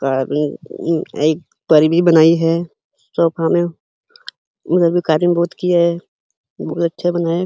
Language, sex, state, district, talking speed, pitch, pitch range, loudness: Hindi, male, Uttar Pradesh, Hamirpur, 70 wpm, 170 Hz, 160-175 Hz, -16 LUFS